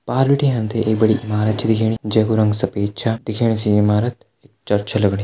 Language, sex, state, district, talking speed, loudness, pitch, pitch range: Hindi, male, Uttarakhand, Tehri Garhwal, 230 wpm, -18 LUFS, 110 Hz, 105-115 Hz